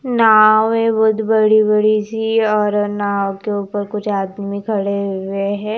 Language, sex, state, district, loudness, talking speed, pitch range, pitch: Hindi, female, Himachal Pradesh, Shimla, -16 LUFS, 145 wpm, 200-220 Hz, 210 Hz